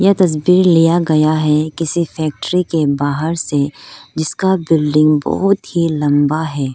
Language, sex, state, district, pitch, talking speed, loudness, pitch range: Hindi, female, Arunachal Pradesh, Lower Dibang Valley, 160 Hz, 135 wpm, -15 LUFS, 150-170 Hz